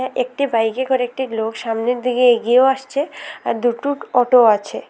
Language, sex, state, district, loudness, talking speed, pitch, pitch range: Bengali, female, Tripura, West Tripura, -18 LUFS, 160 wpm, 250 Hz, 230-260 Hz